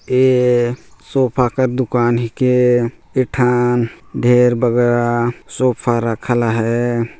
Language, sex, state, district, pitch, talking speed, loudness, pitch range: Chhattisgarhi, male, Chhattisgarh, Jashpur, 120 Hz, 115 wpm, -16 LUFS, 120-125 Hz